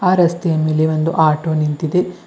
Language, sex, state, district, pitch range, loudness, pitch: Kannada, male, Karnataka, Bidar, 155-180 Hz, -16 LUFS, 160 Hz